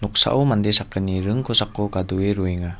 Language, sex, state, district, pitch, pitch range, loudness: Garo, male, Meghalaya, West Garo Hills, 100 Hz, 95-105 Hz, -19 LUFS